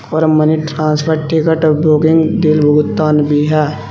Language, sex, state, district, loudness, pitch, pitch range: Hindi, male, Uttar Pradesh, Saharanpur, -12 LUFS, 155 Hz, 150-160 Hz